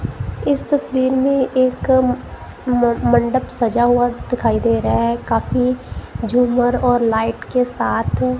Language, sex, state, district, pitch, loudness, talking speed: Hindi, female, Punjab, Kapurthala, 240 Hz, -17 LUFS, 130 wpm